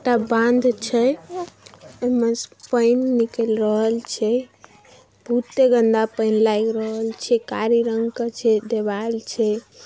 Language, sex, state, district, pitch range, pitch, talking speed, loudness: Maithili, female, Bihar, Darbhanga, 220-240 Hz, 230 Hz, 135 wpm, -20 LUFS